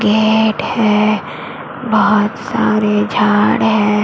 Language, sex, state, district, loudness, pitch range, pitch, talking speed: Hindi, female, Maharashtra, Mumbai Suburban, -14 LUFS, 210-220 Hz, 215 Hz, 90 wpm